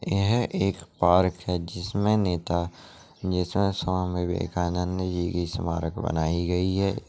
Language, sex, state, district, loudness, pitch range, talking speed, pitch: Hindi, male, Chhattisgarh, Kabirdham, -26 LUFS, 85-95 Hz, 125 wpm, 90 Hz